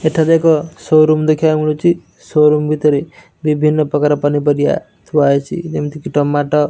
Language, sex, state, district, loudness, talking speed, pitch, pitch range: Odia, male, Odisha, Nuapada, -14 LUFS, 125 wpm, 150 Hz, 145-160 Hz